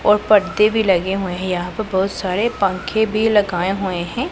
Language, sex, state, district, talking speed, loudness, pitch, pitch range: Hindi, female, Punjab, Pathankot, 210 wpm, -18 LUFS, 195 Hz, 185-215 Hz